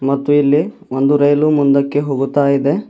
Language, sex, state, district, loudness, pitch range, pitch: Kannada, male, Karnataka, Bidar, -14 LUFS, 140-145 Hz, 145 Hz